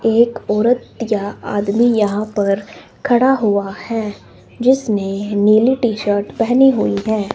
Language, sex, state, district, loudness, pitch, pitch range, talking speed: Hindi, male, Himachal Pradesh, Shimla, -16 LUFS, 215 Hz, 205-235 Hz, 130 wpm